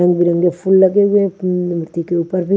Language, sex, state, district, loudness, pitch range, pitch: Hindi, female, Maharashtra, Washim, -15 LUFS, 175-190 Hz, 180 Hz